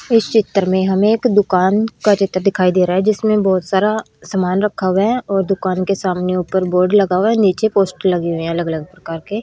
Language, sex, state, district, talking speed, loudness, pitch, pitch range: Hindi, female, Haryana, Rohtak, 235 wpm, -16 LUFS, 190 Hz, 185-210 Hz